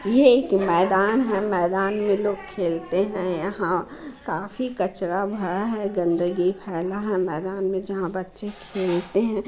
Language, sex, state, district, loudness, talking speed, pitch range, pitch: Hindi, female, Bihar, Muzaffarpur, -24 LUFS, 145 wpm, 180-205 Hz, 195 Hz